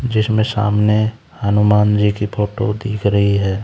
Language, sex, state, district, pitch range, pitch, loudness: Hindi, male, Haryana, Charkhi Dadri, 105-110 Hz, 105 Hz, -16 LUFS